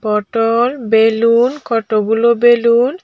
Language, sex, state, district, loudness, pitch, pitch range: Bengali, female, Tripura, Dhalai, -13 LUFS, 230 Hz, 225-240 Hz